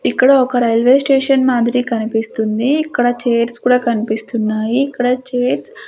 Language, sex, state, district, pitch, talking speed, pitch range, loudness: Telugu, female, Andhra Pradesh, Sri Satya Sai, 245 Hz, 130 wpm, 230-260 Hz, -15 LUFS